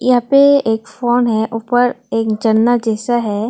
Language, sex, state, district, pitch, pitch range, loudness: Hindi, female, Tripura, West Tripura, 230 Hz, 220-245 Hz, -15 LUFS